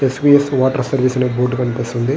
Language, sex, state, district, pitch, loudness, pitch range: Telugu, male, Andhra Pradesh, Guntur, 130 Hz, -16 LUFS, 125-135 Hz